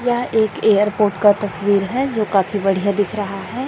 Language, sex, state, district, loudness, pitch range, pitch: Hindi, female, Chhattisgarh, Raipur, -17 LUFS, 200-220 Hz, 205 Hz